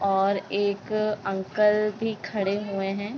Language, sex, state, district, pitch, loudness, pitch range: Hindi, female, Jharkhand, Jamtara, 205 Hz, -26 LUFS, 195-210 Hz